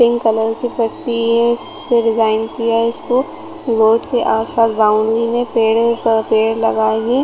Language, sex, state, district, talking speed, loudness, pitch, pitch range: Hindi, female, Chhattisgarh, Rajnandgaon, 165 wpm, -15 LUFS, 230 Hz, 225-235 Hz